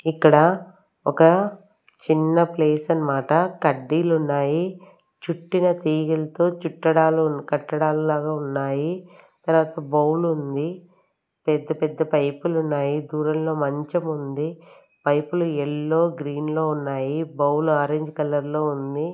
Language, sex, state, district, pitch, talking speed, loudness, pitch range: Telugu, female, Andhra Pradesh, Sri Satya Sai, 155 Hz, 105 wpm, -22 LUFS, 150-165 Hz